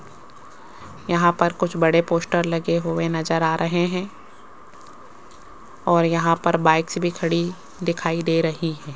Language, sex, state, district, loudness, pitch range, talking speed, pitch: Hindi, female, Rajasthan, Jaipur, -21 LUFS, 165-175 Hz, 140 wpm, 170 Hz